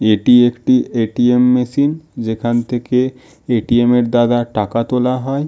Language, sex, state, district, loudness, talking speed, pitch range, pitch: Bengali, male, West Bengal, Malda, -15 LUFS, 165 wpm, 120-125 Hz, 120 Hz